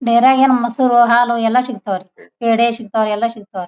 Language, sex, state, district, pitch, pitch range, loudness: Kannada, female, Karnataka, Bijapur, 235 Hz, 220-240 Hz, -15 LUFS